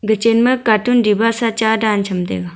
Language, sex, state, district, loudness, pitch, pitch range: Wancho, female, Arunachal Pradesh, Longding, -15 LUFS, 220 Hz, 210-230 Hz